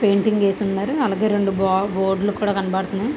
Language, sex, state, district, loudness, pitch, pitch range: Telugu, female, Andhra Pradesh, Visakhapatnam, -20 LUFS, 200 Hz, 195-210 Hz